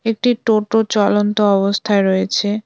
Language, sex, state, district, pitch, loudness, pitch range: Bengali, female, West Bengal, Cooch Behar, 210 Hz, -16 LUFS, 200-220 Hz